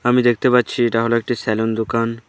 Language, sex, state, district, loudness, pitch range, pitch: Bengali, male, West Bengal, Alipurduar, -18 LUFS, 115-120 Hz, 115 Hz